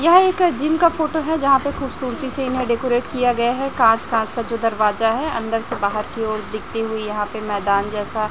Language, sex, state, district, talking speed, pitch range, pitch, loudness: Hindi, female, Chhattisgarh, Raipur, 240 wpm, 220-270 Hz, 235 Hz, -20 LUFS